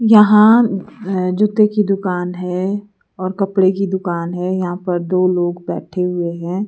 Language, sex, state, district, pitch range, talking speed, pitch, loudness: Hindi, female, Himachal Pradesh, Shimla, 180-205 Hz, 145 wpm, 185 Hz, -16 LUFS